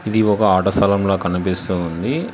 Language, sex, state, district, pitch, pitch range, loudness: Telugu, male, Telangana, Hyderabad, 95 Hz, 90-105 Hz, -18 LUFS